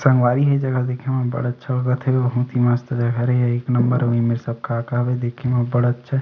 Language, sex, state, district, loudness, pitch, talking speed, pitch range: Chhattisgarhi, male, Chhattisgarh, Bastar, -20 LUFS, 125 Hz, 250 wpm, 120-125 Hz